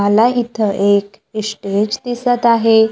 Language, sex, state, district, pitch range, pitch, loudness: Marathi, female, Maharashtra, Gondia, 205-235 Hz, 215 Hz, -15 LUFS